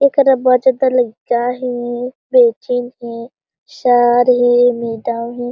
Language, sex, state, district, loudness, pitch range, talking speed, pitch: Chhattisgarhi, female, Chhattisgarh, Jashpur, -14 LUFS, 240-255 Hz, 120 wpm, 245 Hz